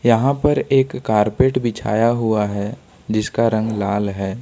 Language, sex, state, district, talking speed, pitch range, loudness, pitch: Hindi, male, Jharkhand, Ranchi, 150 wpm, 105-120 Hz, -19 LUFS, 110 Hz